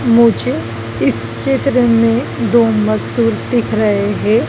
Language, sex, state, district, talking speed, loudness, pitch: Hindi, female, Madhya Pradesh, Dhar, 120 wpm, -14 LUFS, 225 Hz